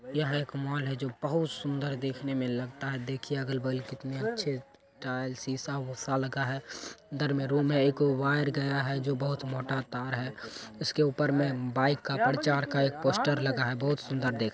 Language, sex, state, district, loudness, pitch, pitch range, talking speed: Angika, male, Bihar, Begusarai, -31 LUFS, 135 Hz, 130-145 Hz, 205 wpm